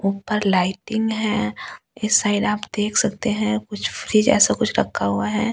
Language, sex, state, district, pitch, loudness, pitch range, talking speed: Hindi, female, Delhi, New Delhi, 210 Hz, -20 LUFS, 195-220 Hz, 175 wpm